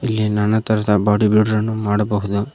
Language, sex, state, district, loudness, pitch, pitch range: Kannada, male, Karnataka, Koppal, -17 LUFS, 105 Hz, 105-110 Hz